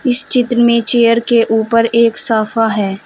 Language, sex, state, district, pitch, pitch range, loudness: Hindi, female, Uttar Pradesh, Saharanpur, 230 Hz, 225-235 Hz, -12 LUFS